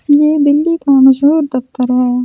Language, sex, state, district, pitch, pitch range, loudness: Hindi, female, Delhi, New Delhi, 280 Hz, 255-300 Hz, -11 LUFS